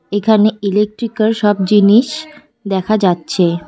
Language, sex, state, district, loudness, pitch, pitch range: Bengali, female, West Bengal, Cooch Behar, -14 LUFS, 210 Hz, 200-220 Hz